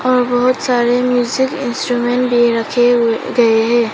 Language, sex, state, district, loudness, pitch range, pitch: Hindi, female, Arunachal Pradesh, Papum Pare, -14 LUFS, 240-250 Hz, 245 Hz